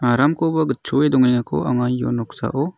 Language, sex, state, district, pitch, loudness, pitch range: Garo, male, Meghalaya, South Garo Hills, 130 Hz, -19 LUFS, 125-145 Hz